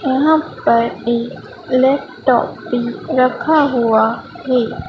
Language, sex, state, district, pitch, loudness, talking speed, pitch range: Hindi, female, Madhya Pradesh, Dhar, 250 Hz, -16 LUFS, 100 wpm, 235-270 Hz